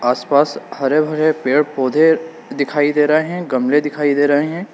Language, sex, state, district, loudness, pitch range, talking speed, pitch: Hindi, male, Uttar Pradesh, Lalitpur, -16 LUFS, 140-155 Hz, 190 wpm, 150 Hz